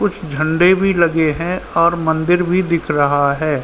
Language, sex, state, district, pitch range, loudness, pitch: Hindi, male, Uttar Pradesh, Ghazipur, 155-180 Hz, -15 LUFS, 165 Hz